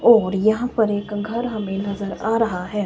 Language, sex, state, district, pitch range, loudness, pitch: Hindi, female, Himachal Pradesh, Shimla, 200-225 Hz, -21 LUFS, 210 Hz